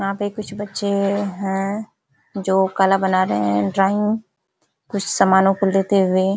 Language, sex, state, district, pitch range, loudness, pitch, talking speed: Hindi, female, Uttar Pradesh, Ghazipur, 190-200 Hz, -19 LUFS, 195 Hz, 160 wpm